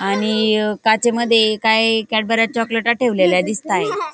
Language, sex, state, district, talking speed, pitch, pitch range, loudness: Marathi, female, Maharashtra, Dhule, 100 wpm, 220 Hz, 215-230 Hz, -16 LUFS